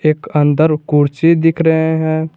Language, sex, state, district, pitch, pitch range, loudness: Hindi, male, Jharkhand, Garhwa, 160 Hz, 150-160 Hz, -13 LUFS